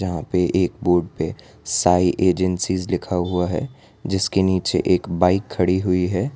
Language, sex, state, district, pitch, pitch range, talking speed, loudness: Hindi, male, Gujarat, Valsad, 90 Hz, 90-95 Hz, 160 wpm, -20 LUFS